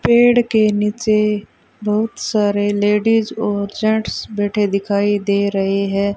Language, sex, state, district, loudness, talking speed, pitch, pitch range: Hindi, female, Rajasthan, Bikaner, -17 LUFS, 125 wpm, 210 Hz, 200-215 Hz